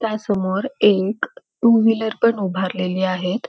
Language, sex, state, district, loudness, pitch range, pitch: Marathi, female, Maharashtra, Pune, -19 LUFS, 190-225 Hz, 210 Hz